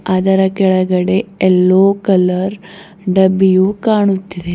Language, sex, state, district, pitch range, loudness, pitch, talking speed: Kannada, female, Karnataka, Bidar, 185-200 Hz, -13 LUFS, 190 Hz, 80 wpm